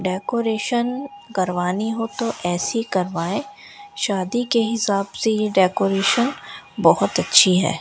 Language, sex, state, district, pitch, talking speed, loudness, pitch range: Hindi, female, Rajasthan, Bikaner, 215 Hz, 115 wpm, -20 LUFS, 185-240 Hz